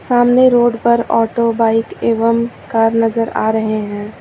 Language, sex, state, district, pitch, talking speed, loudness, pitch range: Hindi, female, Uttar Pradesh, Lucknow, 230 Hz, 155 wpm, -14 LUFS, 225-235 Hz